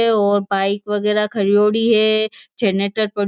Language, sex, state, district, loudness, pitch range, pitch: Marwari, female, Rajasthan, Churu, -17 LUFS, 200-215 Hz, 210 Hz